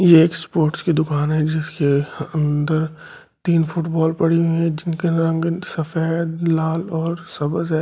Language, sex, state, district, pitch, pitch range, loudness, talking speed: Hindi, male, Delhi, New Delhi, 160 Hz, 155-165 Hz, -20 LUFS, 155 wpm